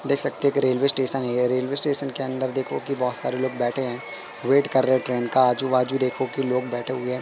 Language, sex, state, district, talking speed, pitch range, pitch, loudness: Hindi, male, Madhya Pradesh, Katni, 265 wpm, 125-135 Hz, 130 Hz, -21 LUFS